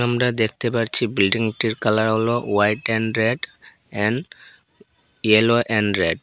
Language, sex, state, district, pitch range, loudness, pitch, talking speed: Bengali, male, Assam, Hailakandi, 105-120 Hz, -20 LUFS, 110 Hz, 135 wpm